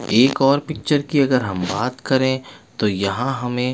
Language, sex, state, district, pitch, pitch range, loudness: Hindi, male, Bihar, Patna, 130 Hz, 115-135 Hz, -19 LUFS